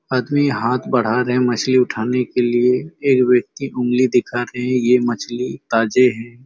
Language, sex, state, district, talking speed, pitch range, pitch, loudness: Hindi, male, Chhattisgarh, Raigarh, 175 wpm, 120-130 Hz, 125 Hz, -18 LUFS